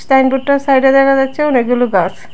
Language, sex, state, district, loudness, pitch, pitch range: Bengali, female, Tripura, West Tripura, -12 LUFS, 270 Hz, 265-275 Hz